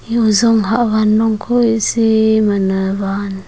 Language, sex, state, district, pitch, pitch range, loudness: Wancho, female, Arunachal Pradesh, Longding, 220 Hz, 200-225 Hz, -14 LUFS